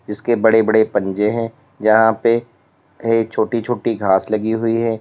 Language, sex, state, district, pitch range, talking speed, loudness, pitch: Hindi, male, Uttar Pradesh, Lalitpur, 110-115 Hz, 155 wpm, -17 LUFS, 115 Hz